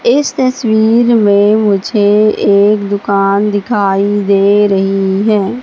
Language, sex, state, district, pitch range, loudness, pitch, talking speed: Hindi, female, Madhya Pradesh, Katni, 200-220 Hz, -11 LUFS, 205 Hz, 105 wpm